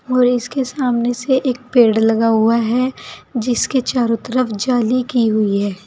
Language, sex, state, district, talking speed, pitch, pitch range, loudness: Hindi, female, Uttar Pradesh, Saharanpur, 165 wpm, 245 Hz, 230-255 Hz, -16 LUFS